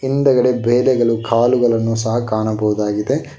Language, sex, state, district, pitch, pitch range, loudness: Kannada, male, Karnataka, Bangalore, 120 Hz, 110-125 Hz, -16 LUFS